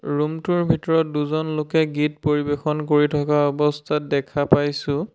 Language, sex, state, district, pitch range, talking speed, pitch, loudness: Assamese, male, Assam, Sonitpur, 145-155 Hz, 130 wpm, 150 Hz, -21 LUFS